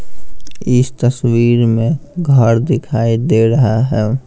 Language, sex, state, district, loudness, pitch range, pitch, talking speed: Hindi, male, Bihar, Patna, -13 LUFS, 115-135 Hz, 120 Hz, 110 wpm